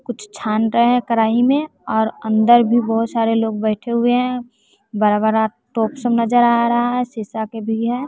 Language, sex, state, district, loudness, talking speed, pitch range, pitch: Hindi, female, Bihar, West Champaran, -17 LUFS, 200 wpm, 220-240 Hz, 230 Hz